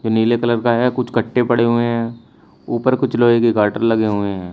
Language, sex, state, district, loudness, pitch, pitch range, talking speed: Hindi, male, Uttar Pradesh, Shamli, -17 LUFS, 115 Hz, 110-120 Hz, 225 wpm